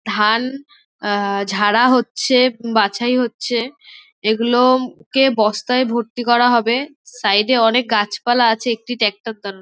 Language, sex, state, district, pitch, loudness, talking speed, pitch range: Bengali, female, West Bengal, Dakshin Dinajpur, 235 Hz, -16 LUFS, 120 wpm, 215-250 Hz